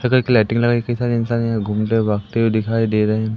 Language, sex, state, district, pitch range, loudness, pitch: Hindi, male, Madhya Pradesh, Umaria, 110-120 Hz, -18 LUFS, 115 Hz